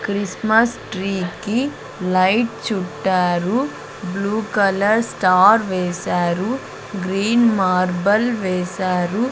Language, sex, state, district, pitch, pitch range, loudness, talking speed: Telugu, female, Andhra Pradesh, Sri Satya Sai, 195 Hz, 185-220 Hz, -19 LUFS, 75 wpm